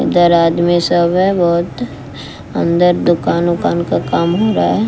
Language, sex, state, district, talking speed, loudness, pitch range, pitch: Hindi, female, Bihar, West Champaran, 160 wpm, -14 LUFS, 170-175 Hz, 170 Hz